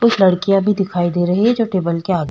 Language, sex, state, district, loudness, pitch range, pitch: Hindi, female, Uttar Pradesh, Budaun, -16 LUFS, 175-200 Hz, 185 Hz